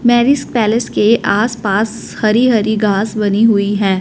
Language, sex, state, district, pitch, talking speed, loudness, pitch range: Hindi, female, Punjab, Fazilka, 220 Hz, 165 wpm, -14 LUFS, 205-235 Hz